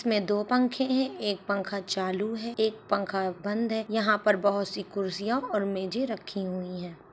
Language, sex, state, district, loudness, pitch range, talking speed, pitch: Hindi, female, Uttar Pradesh, Ghazipur, -29 LUFS, 195-220 Hz, 185 wpm, 205 Hz